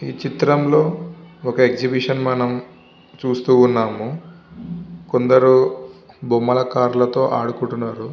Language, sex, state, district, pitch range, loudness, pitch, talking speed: Telugu, male, Andhra Pradesh, Visakhapatnam, 125-155 Hz, -18 LUFS, 130 Hz, 95 wpm